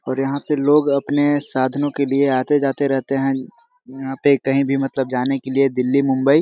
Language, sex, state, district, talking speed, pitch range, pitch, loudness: Hindi, male, Chhattisgarh, Korba, 205 wpm, 135-145 Hz, 135 Hz, -19 LUFS